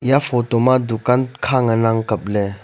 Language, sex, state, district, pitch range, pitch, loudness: Wancho, male, Arunachal Pradesh, Longding, 110-130 Hz, 120 Hz, -18 LUFS